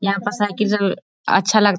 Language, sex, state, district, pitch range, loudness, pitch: Hindi, female, Bihar, Sitamarhi, 200-210 Hz, -19 LUFS, 205 Hz